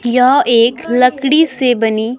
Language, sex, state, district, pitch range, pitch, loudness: Hindi, female, Himachal Pradesh, Shimla, 235-260 Hz, 250 Hz, -12 LUFS